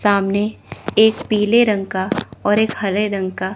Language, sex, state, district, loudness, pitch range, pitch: Hindi, female, Chandigarh, Chandigarh, -18 LUFS, 195-215 Hz, 205 Hz